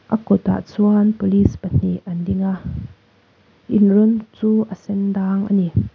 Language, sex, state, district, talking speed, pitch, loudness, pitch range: Mizo, female, Mizoram, Aizawl, 160 wpm, 195 Hz, -18 LUFS, 175-210 Hz